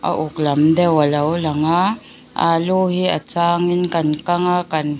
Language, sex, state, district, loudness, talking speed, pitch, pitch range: Mizo, female, Mizoram, Aizawl, -17 LUFS, 180 wpm, 165 Hz, 155-180 Hz